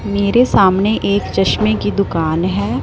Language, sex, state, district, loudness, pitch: Hindi, female, Punjab, Fazilka, -15 LUFS, 165 Hz